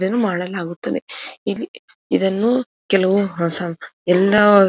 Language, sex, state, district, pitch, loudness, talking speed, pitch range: Kannada, female, Karnataka, Dharwad, 195 Hz, -19 LUFS, 90 wpm, 180-215 Hz